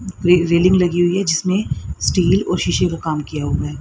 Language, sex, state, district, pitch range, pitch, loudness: Hindi, female, Haryana, Rohtak, 160-180 Hz, 175 Hz, -17 LUFS